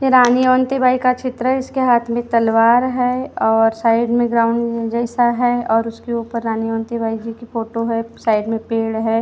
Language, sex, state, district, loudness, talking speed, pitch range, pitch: Hindi, female, Maharashtra, Gondia, -17 LUFS, 200 wpm, 225-245 Hz, 235 Hz